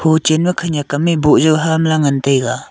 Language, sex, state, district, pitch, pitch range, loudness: Wancho, male, Arunachal Pradesh, Longding, 155 Hz, 145-160 Hz, -14 LUFS